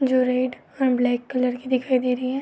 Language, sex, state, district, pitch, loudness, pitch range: Hindi, female, Uttar Pradesh, Gorakhpur, 255 Hz, -23 LUFS, 250-255 Hz